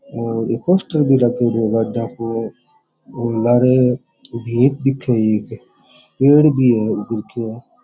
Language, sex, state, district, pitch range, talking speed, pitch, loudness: Rajasthani, male, Rajasthan, Churu, 115-135 Hz, 115 wpm, 120 Hz, -17 LUFS